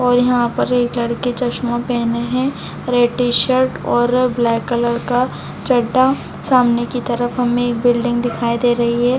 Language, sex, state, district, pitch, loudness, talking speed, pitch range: Hindi, female, Chhattisgarh, Bilaspur, 245 Hz, -16 LUFS, 170 wpm, 240-250 Hz